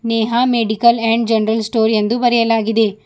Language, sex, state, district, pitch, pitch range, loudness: Kannada, female, Karnataka, Bidar, 225 Hz, 220-235 Hz, -15 LUFS